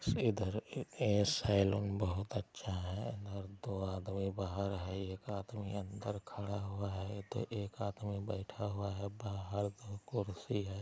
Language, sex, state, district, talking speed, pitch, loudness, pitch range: Hindi, male, Bihar, Araria, 155 wpm, 100 Hz, -39 LUFS, 100-105 Hz